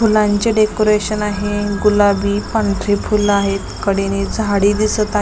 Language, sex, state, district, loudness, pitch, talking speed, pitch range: Marathi, female, Maharashtra, Nagpur, -16 LUFS, 205 Hz, 125 wpm, 200-215 Hz